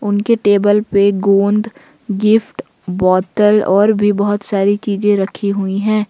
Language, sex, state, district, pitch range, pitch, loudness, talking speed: Hindi, female, Jharkhand, Ranchi, 200-210 Hz, 205 Hz, -14 LUFS, 140 wpm